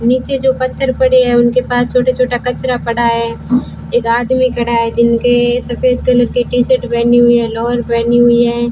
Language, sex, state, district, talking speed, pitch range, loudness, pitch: Hindi, female, Rajasthan, Bikaner, 200 wpm, 235-250 Hz, -13 LUFS, 240 Hz